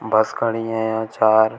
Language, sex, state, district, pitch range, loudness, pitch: Hindi, male, Uttar Pradesh, Shamli, 110-115 Hz, -19 LUFS, 110 Hz